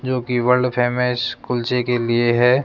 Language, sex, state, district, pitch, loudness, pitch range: Hindi, male, Rajasthan, Jaipur, 125 Hz, -19 LUFS, 120-125 Hz